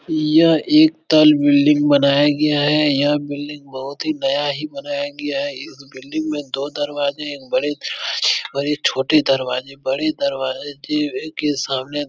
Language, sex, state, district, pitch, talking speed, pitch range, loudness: Hindi, male, Bihar, Supaul, 145 Hz, 155 wpm, 140-155 Hz, -18 LUFS